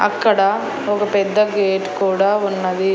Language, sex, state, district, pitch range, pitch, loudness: Telugu, female, Andhra Pradesh, Annamaya, 195-210 Hz, 200 Hz, -17 LUFS